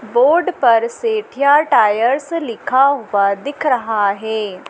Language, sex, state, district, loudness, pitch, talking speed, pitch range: Hindi, female, Madhya Pradesh, Dhar, -16 LUFS, 255 Hz, 115 wpm, 215-300 Hz